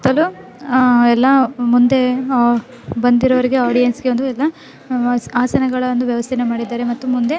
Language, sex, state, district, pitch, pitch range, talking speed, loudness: Kannada, female, Karnataka, Dharwad, 250 Hz, 240-260 Hz, 115 wpm, -16 LUFS